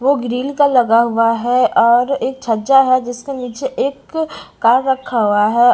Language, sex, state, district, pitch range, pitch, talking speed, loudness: Hindi, female, Bihar, Patna, 230-270 Hz, 250 Hz, 175 wpm, -15 LUFS